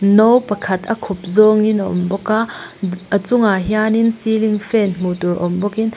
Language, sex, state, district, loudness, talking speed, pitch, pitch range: Mizo, female, Mizoram, Aizawl, -16 LUFS, 170 wpm, 210 Hz, 190-220 Hz